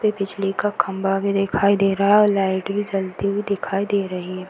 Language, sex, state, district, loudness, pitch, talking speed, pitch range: Hindi, female, Uttar Pradesh, Varanasi, -21 LUFS, 195 Hz, 240 wpm, 195-200 Hz